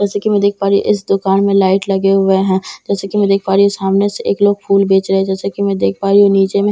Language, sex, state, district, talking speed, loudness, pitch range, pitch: Hindi, female, Bihar, Katihar, 340 wpm, -13 LUFS, 195-200 Hz, 195 Hz